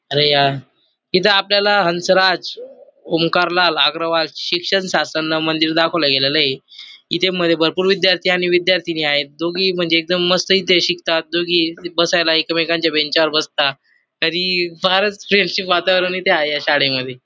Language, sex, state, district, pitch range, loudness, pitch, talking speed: Marathi, male, Maharashtra, Dhule, 160-185 Hz, -16 LUFS, 170 Hz, 140 wpm